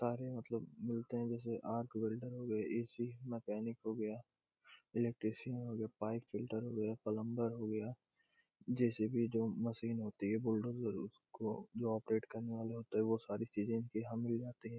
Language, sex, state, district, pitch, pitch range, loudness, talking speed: Hindi, male, Bihar, Gopalganj, 115 Hz, 110-120 Hz, -41 LUFS, 160 wpm